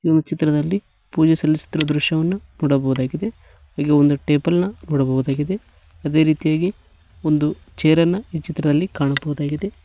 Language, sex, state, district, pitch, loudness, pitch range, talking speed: Kannada, male, Karnataka, Koppal, 155 Hz, -20 LUFS, 145-165 Hz, 115 wpm